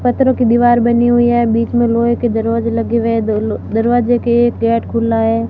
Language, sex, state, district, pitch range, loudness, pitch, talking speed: Hindi, female, Rajasthan, Barmer, 230-240 Hz, -14 LUFS, 235 Hz, 220 wpm